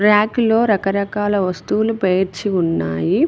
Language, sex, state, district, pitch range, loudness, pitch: Telugu, female, Telangana, Mahabubabad, 185-210 Hz, -18 LUFS, 200 Hz